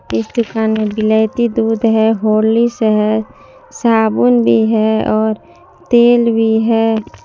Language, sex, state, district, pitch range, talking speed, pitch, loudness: Hindi, female, Jharkhand, Palamu, 215-225 Hz, 125 wpm, 220 Hz, -13 LUFS